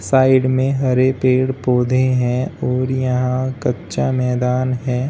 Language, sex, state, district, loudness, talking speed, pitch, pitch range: Hindi, male, Uttar Pradesh, Shamli, -17 LUFS, 130 wpm, 130 Hz, 125-130 Hz